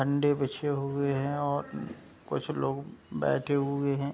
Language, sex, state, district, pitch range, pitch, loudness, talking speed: Hindi, male, Uttar Pradesh, Gorakhpur, 140-145 Hz, 140 Hz, -31 LUFS, 145 wpm